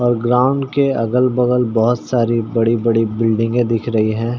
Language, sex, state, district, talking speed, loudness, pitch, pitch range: Hindi, male, Uttar Pradesh, Ghazipur, 165 wpm, -16 LUFS, 115 Hz, 115-125 Hz